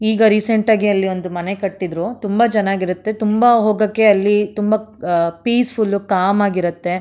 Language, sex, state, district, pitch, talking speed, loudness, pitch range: Kannada, female, Karnataka, Mysore, 205 Hz, 155 wpm, -17 LUFS, 185-220 Hz